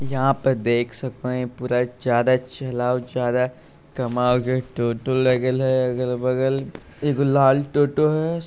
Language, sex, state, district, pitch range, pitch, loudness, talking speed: Hindi, male, Bihar, Lakhisarai, 125-135 Hz, 130 Hz, -22 LUFS, 155 wpm